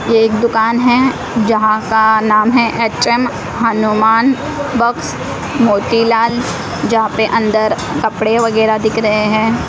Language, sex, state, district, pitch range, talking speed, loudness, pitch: Hindi, female, Odisha, Malkangiri, 220-235 Hz, 125 wpm, -13 LUFS, 225 Hz